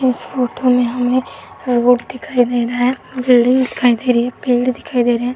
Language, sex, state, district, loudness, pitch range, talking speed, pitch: Hindi, female, Uttar Pradesh, Varanasi, -16 LUFS, 245-255 Hz, 210 wpm, 245 Hz